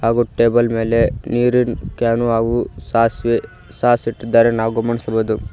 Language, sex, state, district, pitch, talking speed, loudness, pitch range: Kannada, male, Karnataka, Koppal, 115 Hz, 120 wpm, -17 LUFS, 115-120 Hz